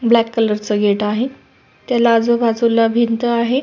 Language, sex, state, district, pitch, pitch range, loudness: Marathi, female, Maharashtra, Sindhudurg, 230 Hz, 225-235 Hz, -16 LUFS